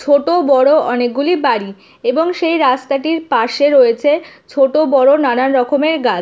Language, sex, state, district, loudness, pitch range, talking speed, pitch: Bengali, female, West Bengal, Jhargram, -13 LUFS, 255-310 Hz, 145 wpm, 285 Hz